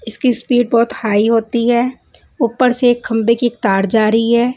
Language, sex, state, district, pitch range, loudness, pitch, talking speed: Hindi, female, Punjab, Fazilka, 225-245 Hz, -15 LUFS, 235 Hz, 195 wpm